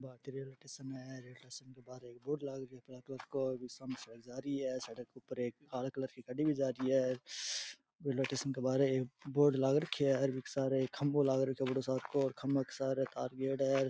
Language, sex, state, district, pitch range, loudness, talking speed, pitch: Rajasthani, male, Rajasthan, Churu, 130-135 Hz, -37 LUFS, 210 wpm, 135 Hz